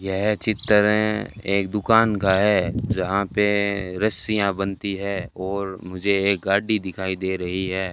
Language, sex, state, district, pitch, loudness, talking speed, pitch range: Hindi, male, Rajasthan, Bikaner, 100 Hz, -22 LUFS, 145 wpm, 95-105 Hz